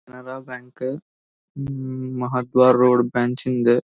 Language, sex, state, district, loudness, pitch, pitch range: Kannada, male, Karnataka, Belgaum, -20 LUFS, 125 Hz, 125-130 Hz